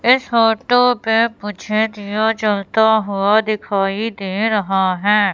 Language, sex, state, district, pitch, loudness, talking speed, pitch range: Hindi, female, Madhya Pradesh, Katni, 215 Hz, -17 LUFS, 125 wpm, 205-225 Hz